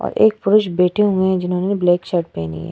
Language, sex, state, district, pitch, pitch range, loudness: Hindi, female, Uttar Pradesh, Etah, 180 Hz, 175-200 Hz, -17 LUFS